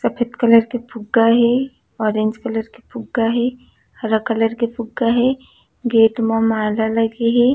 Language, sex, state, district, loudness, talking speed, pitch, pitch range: Chhattisgarhi, female, Chhattisgarh, Raigarh, -18 LUFS, 160 wpm, 230 Hz, 225-240 Hz